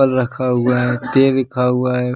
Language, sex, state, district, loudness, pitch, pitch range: Hindi, male, Jharkhand, Deoghar, -16 LUFS, 125 Hz, 125-130 Hz